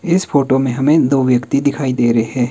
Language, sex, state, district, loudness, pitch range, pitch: Hindi, male, Himachal Pradesh, Shimla, -15 LUFS, 125-140 Hz, 135 Hz